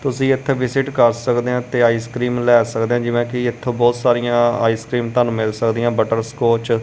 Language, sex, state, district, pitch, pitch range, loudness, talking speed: Punjabi, male, Punjab, Kapurthala, 120 Hz, 115-125 Hz, -17 LUFS, 195 wpm